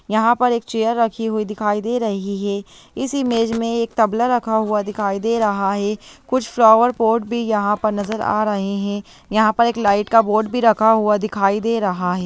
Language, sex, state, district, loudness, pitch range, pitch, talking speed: Hindi, female, Bihar, Jahanabad, -18 LUFS, 205-230 Hz, 220 Hz, 215 wpm